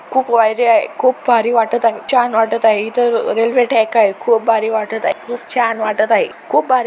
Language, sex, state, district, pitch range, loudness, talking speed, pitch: Marathi, male, Maharashtra, Dhule, 225-245 Hz, -15 LUFS, 210 wpm, 230 Hz